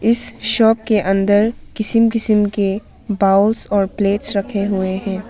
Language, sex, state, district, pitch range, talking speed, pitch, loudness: Hindi, female, Arunachal Pradesh, Papum Pare, 195-220 Hz, 145 wpm, 205 Hz, -16 LUFS